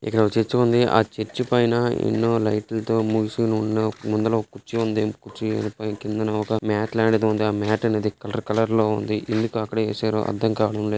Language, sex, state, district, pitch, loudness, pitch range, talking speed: Telugu, male, Andhra Pradesh, Chittoor, 110 Hz, -23 LUFS, 105-115 Hz, 180 wpm